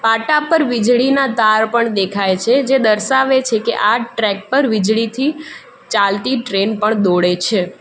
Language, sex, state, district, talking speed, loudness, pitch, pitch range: Gujarati, female, Gujarat, Valsad, 155 wpm, -15 LUFS, 225 Hz, 205-260 Hz